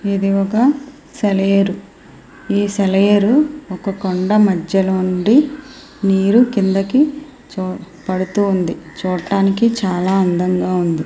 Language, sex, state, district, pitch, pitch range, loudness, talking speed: Telugu, female, Andhra Pradesh, Srikakulam, 195 Hz, 185-230 Hz, -16 LUFS, 85 wpm